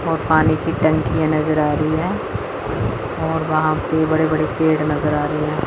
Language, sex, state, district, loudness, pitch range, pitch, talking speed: Hindi, female, Chandigarh, Chandigarh, -19 LUFS, 150-160 Hz, 155 Hz, 200 wpm